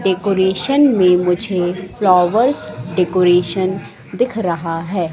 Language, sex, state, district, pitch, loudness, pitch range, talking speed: Hindi, female, Madhya Pradesh, Katni, 185 Hz, -16 LUFS, 175-195 Hz, 95 wpm